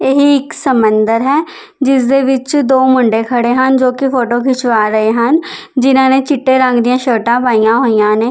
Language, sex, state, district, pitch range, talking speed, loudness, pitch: Punjabi, female, Chandigarh, Chandigarh, 235-270 Hz, 180 wpm, -11 LUFS, 260 Hz